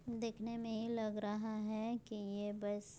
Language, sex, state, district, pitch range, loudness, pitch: Hindi, female, Bihar, Muzaffarpur, 205-230 Hz, -42 LUFS, 215 Hz